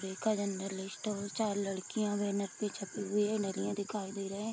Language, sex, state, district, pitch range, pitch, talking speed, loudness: Hindi, female, Bihar, Sitamarhi, 195-210 Hz, 200 Hz, 185 wpm, -36 LUFS